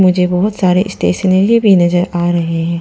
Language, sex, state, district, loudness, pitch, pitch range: Hindi, female, Arunachal Pradesh, Papum Pare, -12 LUFS, 180 Hz, 175-190 Hz